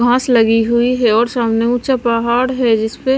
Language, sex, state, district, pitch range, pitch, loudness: Hindi, female, Maharashtra, Washim, 230-250 Hz, 235 Hz, -14 LUFS